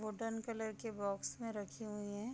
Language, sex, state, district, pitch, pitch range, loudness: Hindi, female, Bihar, Gopalganj, 220 Hz, 205-225 Hz, -43 LUFS